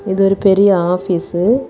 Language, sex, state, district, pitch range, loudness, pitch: Tamil, female, Tamil Nadu, Kanyakumari, 180-200 Hz, -14 LUFS, 195 Hz